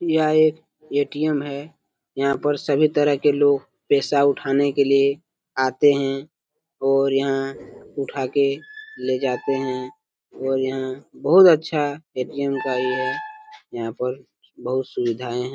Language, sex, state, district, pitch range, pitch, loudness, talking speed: Hindi, male, Jharkhand, Jamtara, 130-150 Hz, 140 Hz, -21 LUFS, 135 wpm